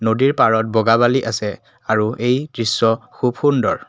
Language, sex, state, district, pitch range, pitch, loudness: Assamese, male, Assam, Kamrup Metropolitan, 110-125 Hz, 115 Hz, -17 LUFS